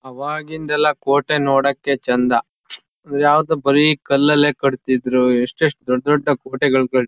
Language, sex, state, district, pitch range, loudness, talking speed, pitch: Kannada, male, Karnataka, Shimoga, 130-150 Hz, -17 LUFS, 150 wpm, 140 Hz